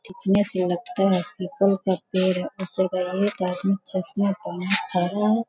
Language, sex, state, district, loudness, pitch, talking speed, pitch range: Hindi, female, Bihar, Sitamarhi, -24 LUFS, 190 Hz, 130 wpm, 185-200 Hz